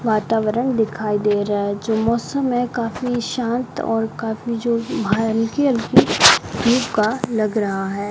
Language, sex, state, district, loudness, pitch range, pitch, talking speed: Hindi, male, Rajasthan, Bikaner, -19 LUFS, 215-240 Hz, 225 Hz, 150 wpm